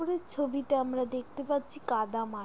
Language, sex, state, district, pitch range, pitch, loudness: Bengali, female, West Bengal, Jalpaiguri, 245-285 Hz, 275 Hz, -32 LUFS